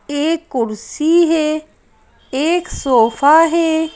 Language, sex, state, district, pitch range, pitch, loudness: Hindi, female, Madhya Pradesh, Bhopal, 280-330 Hz, 310 Hz, -15 LUFS